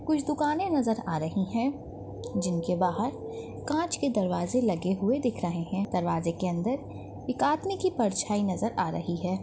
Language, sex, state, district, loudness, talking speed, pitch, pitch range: Hindi, female, Chhattisgarh, Bastar, -29 LUFS, 170 wpm, 210 Hz, 180-275 Hz